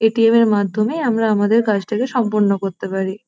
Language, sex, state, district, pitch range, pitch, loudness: Bengali, female, West Bengal, North 24 Parganas, 200-230 Hz, 215 Hz, -17 LUFS